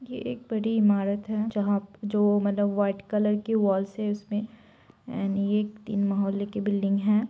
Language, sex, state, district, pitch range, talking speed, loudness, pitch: Hindi, female, Bihar, Saran, 200-215 Hz, 165 wpm, -27 LUFS, 205 Hz